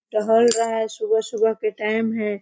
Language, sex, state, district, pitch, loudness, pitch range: Hindi, female, Chhattisgarh, Korba, 220 Hz, -21 LUFS, 215-225 Hz